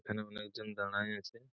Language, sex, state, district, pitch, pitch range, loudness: Bengali, male, West Bengal, Purulia, 105 Hz, 105-110 Hz, -40 LUFS